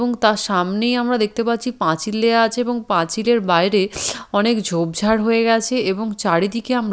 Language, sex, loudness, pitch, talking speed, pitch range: Bengali, female, -18 LUFS, 220 Hz, 165 wpm, 195-235 Hz